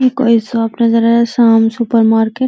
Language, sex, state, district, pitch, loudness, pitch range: Hindi, female, Uttar Pradesh, Deoria, 230 Hz, -12 LUFS, 225-235 Hz